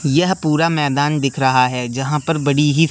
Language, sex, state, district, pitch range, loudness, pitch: Hindi, male, Madhya Pradesh, Katni, 135-160 Hz, -17 LUFS, 145 Hz